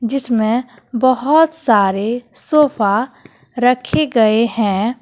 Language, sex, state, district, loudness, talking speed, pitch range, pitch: Hindi, female, Jharkhand, Deoghar, -15 LUFS, 95 wpm, 220-255 Hz, 240 Hz